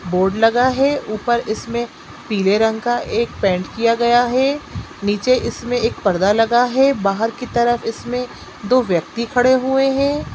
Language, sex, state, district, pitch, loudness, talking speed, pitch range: Hindi, female, Bihar, Jamui, 235 Hz, -17 LUFS, 160 wpm, 215-255 Hz